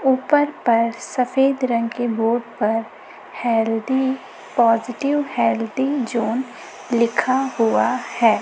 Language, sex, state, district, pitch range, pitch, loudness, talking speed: Hindi, female, Chhattisgarh, Raipur, 230-265 Hz, 240 Hz, -20 LUFS, 100 wpm